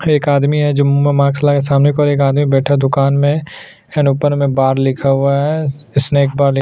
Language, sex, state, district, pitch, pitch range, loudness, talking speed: Hindi, male, Chhattisgarh, Sukma, 140 Hz, 140-145 Hz, -14 LUFS, 245 wpm